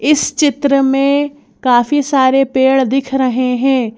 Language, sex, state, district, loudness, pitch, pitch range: Hindi, female, Madhya Pradesh, Bhopal, -13 LUFS, 270 Hz, 260-280 Hz